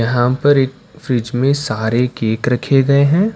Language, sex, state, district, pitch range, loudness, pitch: Hindi, male, Karnataka, Bangalore, 120-145 Hz, -15 LUFS, 130 Hz